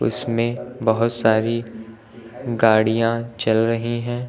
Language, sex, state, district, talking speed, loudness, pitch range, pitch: Hindi, male, Uttar Pradesh, Lucknow, 100 wpm, -20 LUFS, 110-120 Hz, 115 Hz